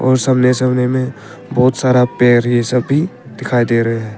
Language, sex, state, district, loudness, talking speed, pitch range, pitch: Hindi, male, Arunachal Pradesh, Papum Pare, -14 LUFS, 200 wpm, 120-130 Hz, 125 Hz